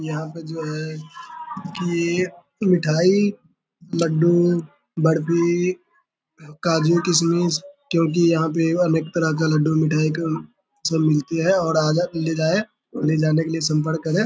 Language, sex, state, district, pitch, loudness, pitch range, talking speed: Hindi, male, Bihar, Sitamarhi, 165 Hz, -21 LUFS, 160-175 Hz, 130 wpm